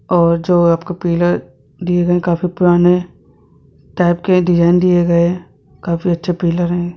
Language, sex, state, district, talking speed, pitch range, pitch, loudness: Hindi, male, Jharkhand, Sahebganj, 155 wpm, 170-180 Hz, 175 Hz, -14 LUFS